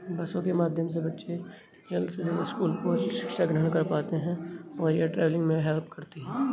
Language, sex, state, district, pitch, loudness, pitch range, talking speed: Hindi, male, Bihar, Bhagalpur, 165 Hz, -29 LUFS, 160-175 Hz, 210 wpm